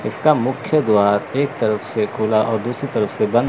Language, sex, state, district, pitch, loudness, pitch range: Hindi, male, Chandigarh, Chandigarh, 120 Hz, -19 LUFS, 110-140 Hz